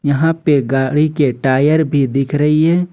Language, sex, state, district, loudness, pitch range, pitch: Hindi, male, Jharkhand, Ranchi, -14 LUFS, 135-155 Hz, 145 Hz